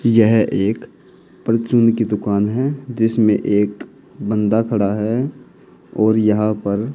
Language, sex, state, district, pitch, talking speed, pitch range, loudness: Hindi, male, Haryana, Jhajjar, 110 Hz, 110 wpm, 105-115 Hz, -17 LUFS